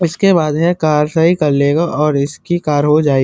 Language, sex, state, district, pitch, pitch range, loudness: Hindi, male, Uttar Pradesh, Muzaffarnagar, 150 Hz, 145-170 Hz, -14 LUFS